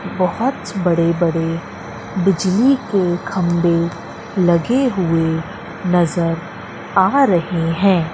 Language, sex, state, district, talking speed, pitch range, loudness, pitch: Hindi, female, Madhya Pradesh, Katni, 90 wpm, 170-195 Hz, -17 LUFS, 175 Hz